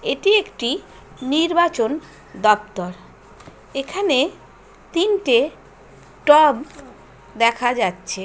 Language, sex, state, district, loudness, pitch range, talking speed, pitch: Bengali, female, West Bengal, Jhargram, -19 LUFS, 230-350 Hz, 65 wpm, 285 Hz